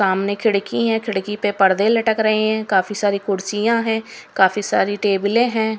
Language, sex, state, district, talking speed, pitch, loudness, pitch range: Hindi, female, Haryana, Rohtak, 175 wpm, 210 Hz, -18 LUFS, 200-220 Hz